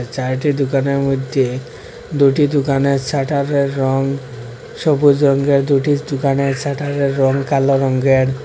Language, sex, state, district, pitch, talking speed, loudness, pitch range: Bengali, male, Assam, Hailakandi, 140 Hz, 120 wpm, -16 LUFS, 135-140 Hz